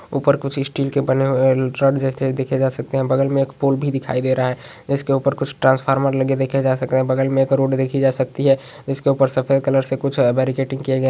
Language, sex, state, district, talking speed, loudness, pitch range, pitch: Magahi, male, Bihar, Gaya, 240 wpm, -19 LUFS, 130-135 Hz, 135 Hz